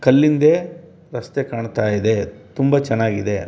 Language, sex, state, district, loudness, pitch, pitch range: Kannada, male, Karnataka, Bellary, -18 LUFS, 115 Hz, 105-145 Hz